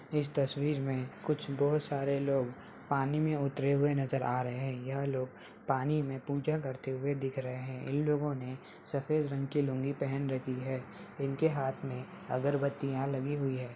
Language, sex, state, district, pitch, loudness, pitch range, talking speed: Hindi, male, Bihar, Jahanabad, 140 Hz, -34 LUFS, 130-145 Hz, 185 wpm